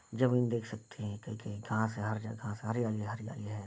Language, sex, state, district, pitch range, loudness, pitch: Hindi, male, Bihar, Bhagalpur, 105-115 Hz, -36 LUFS, 110 Hz